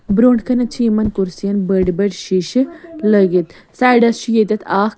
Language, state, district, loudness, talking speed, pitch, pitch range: Kashmiri, Punjab, Kapurthala, -15 LUFS, 135 wpm, 215 Hz, 195-245 Hz